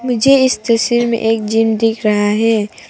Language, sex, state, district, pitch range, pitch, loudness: Hindi, female, Arunachal Pradesh, Papum Pare, 220-240 Hz, 225 Hz, -14 LUFS